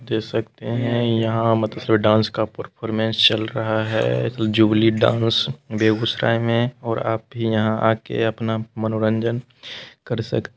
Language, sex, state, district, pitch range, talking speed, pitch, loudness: Hindi, male, Bihar, Begusarai, 110-115 Hz, 130 wpm, 110 Hz, -20 LUFS